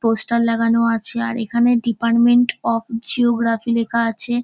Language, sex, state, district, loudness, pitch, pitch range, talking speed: Bengali, female, West Bengal, North 24 Parganas, -18 LUFS, 235 Hz, 230-240 Hz, 135 wpm